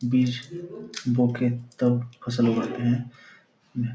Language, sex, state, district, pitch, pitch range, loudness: Hindi, male, Bihar, Purnia, 120 Hz, 120-125 Hz, -26 LUFS